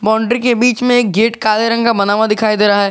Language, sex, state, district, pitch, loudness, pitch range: Hindi, male, Jharkhand, Garhwa, 220 Hz, -13 LUFS, 210-235 Hz